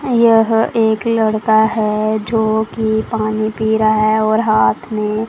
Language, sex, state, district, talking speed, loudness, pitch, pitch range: Hindi, female, Punjab, Pathankot, 135 wpm, -15 LUFS, 220 Hz, 215-225 Hz